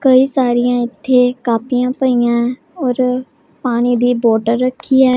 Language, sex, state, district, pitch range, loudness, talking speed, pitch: Punjabi, female, Punjab, Pathankot, 240-260 Hz, -15 LUFS, 130 wpm, 250 Hz